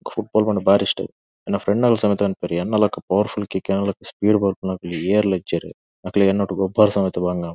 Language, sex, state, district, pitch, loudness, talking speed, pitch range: Tulu, male, Karnataka, Dakshina Kannada, 100 Hz, -20 LUFS, 205 wpm, 95-105 Hz